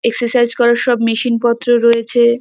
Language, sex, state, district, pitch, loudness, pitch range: Bengali, female, West Bengal, North 24 Parganas, 235 Hz, -14 LUFS, 235-240 Hz